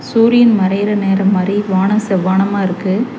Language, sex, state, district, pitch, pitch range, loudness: Tamil, female, Tamil Nadu, Chennai, 200 Hz, 190-210 Hz, -13 LUFS